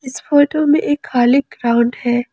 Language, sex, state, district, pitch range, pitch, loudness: Hindi, female, Jharkhand, Ranchi, 240-290 Hz, 255 Hz, -15 LUFS